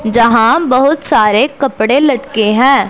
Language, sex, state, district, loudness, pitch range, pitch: Hindi, female, Punjab, Pathankot, -11 LUFS, 225-275 Hz, 255 Hz